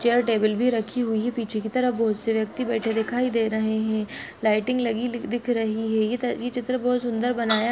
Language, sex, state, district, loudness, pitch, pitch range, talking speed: Hindi, female, Chhattisgarh, Bastar, -24 LUFS, 230 Hz, 220-245 Hz, 210 wpm